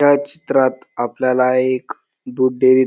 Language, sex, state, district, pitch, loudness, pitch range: Marathi, male, Maharashtra, Dhule, 130 Hz, -17 LUFS, 125-130 Hz